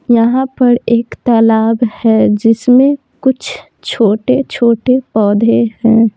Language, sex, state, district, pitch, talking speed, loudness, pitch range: Hindi, female, Bihar, Patna, 235 Hz, 95 wpm, -11 LUFS, 225-255 Hz